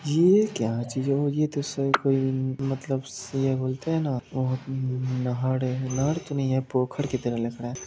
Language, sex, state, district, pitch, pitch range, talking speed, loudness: Hindi, male, Bihar, Supaul, 130 Hz, 130-140 Hz, 185 wpm, -26 LUFS